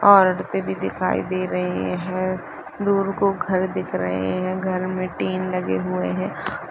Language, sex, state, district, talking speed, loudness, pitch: Hindi, female, Chhattisgarh, Bastar, 170 wpm, -23 LUFS, 185 Hz